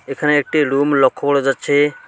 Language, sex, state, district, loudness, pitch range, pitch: Bengali, male, West Bengal, Alipurduar, -16 LUFS, 135-145 Hz, 145 Hz